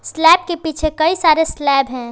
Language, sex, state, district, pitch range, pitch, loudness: Hindi, female, Jharkhand, Palamu, 285-325 Hz, 315 Hz, -15 LUFS